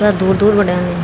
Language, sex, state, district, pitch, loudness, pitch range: Garhwali, female, Uttarakhand, Tehri Garhwal, 190 Hz, -13 LUFS, 180-205 Hz